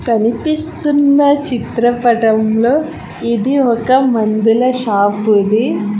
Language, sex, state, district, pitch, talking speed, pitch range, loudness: Telugu, female, Andhra Pradesh, Sri Satya Sai, 235 Hz, 70 wpm, 220-275 Hz, -13 LUFS